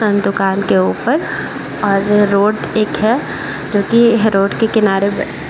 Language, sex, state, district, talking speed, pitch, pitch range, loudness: Hindi, male, Bihar, Saran, 165 wpm, 205 Hz, 195-215 Hz, -15 LUFS